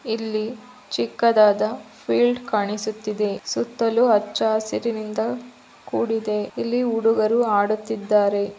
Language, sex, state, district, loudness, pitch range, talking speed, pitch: Kannada, female, Karnataka, Belgaum, -22 LUFS, 210-230 Hz, 75 wpm, 220 Hz